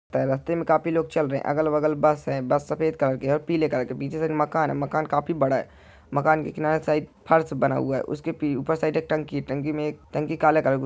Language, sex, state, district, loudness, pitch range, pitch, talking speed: Hindi, male, Chhattisgarh, Bilaspur, -24 LUFS, 145-155 Hz, 150 Hz, 250 wpm